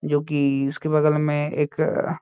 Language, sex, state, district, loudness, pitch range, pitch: Hindi, male, Bihar, Saharsa, -22 LUFS, 145-150 Hz, 150 Hz